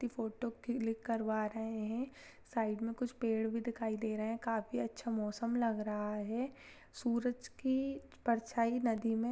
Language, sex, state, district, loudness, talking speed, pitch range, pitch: Hindi, female, Rajasthan, Churu, -38 LUFS, 175 wpm, 220-240 Hz, 230 Hz